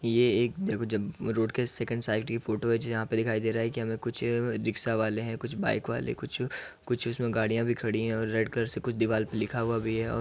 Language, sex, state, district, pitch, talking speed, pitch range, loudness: Hindi, male, Uttar Pradesh, Muzaffarnagar, 115 Hz, 270 wpm, 110-120 Hz, -29 LUFS